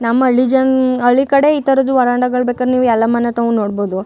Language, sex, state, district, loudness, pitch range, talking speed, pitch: Kannada, female, Karnataka, Chamarajanagar, -14 LUFS, 235-260 Hz, 205 wpm, 250 Hz